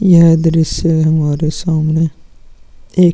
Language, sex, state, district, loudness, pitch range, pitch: Hindi, male, Bihar, Vaishali, -13 LUFS, 155-170 Hz, 165 Hz